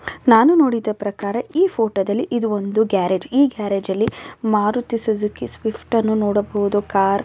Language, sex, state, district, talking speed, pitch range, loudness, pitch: Kannada, female, Karnataka, Bellary, 150 wpm, 205-230 Hz, -19 LUFS, 215 Hz